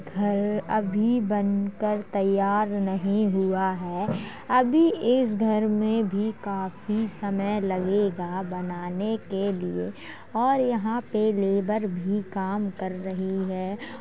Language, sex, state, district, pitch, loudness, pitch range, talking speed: Hindi, female, Uttar Pradesh, Jalaun, 200 Hz, -26 LUFS, 190-215 Hz, 110 wpm